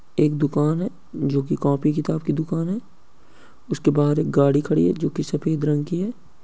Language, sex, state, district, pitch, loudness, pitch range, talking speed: Hindi, male, Uttar Pradesh, Hamirpur, 150 Hz, -22 LUFS, 145-165 Hz, 195 wpm